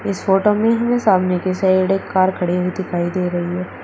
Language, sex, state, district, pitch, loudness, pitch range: Hindi, female, Uttar Pradesh, Shamli, 185 Hz, -18 LUFS, 180-195 Hz